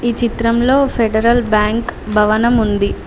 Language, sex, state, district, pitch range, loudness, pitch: Telugu, female, Telangana, Mahabubabad, 215-240 Hz, -14 LUFS, 230 Hz